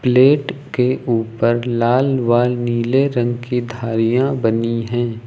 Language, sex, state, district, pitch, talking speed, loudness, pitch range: Hindi, male, Uttar Pradesh, Lucknow, 120 Hz, 125 wpm, -17 LUFS, 115-130 Hz